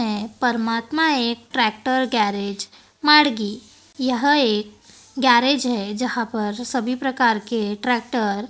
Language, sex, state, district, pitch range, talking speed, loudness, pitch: Hindi, female, Maharashtra, Gondia, 215-260 Hz, 120 wpm, -20 LUFS, 235 Hz